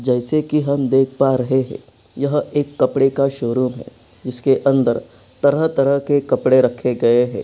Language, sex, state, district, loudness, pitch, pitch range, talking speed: Hindi, male, Jharkhand, Sahebganj, -17 LUFS, 135 Hz, 125-140 Hz, 170 wpm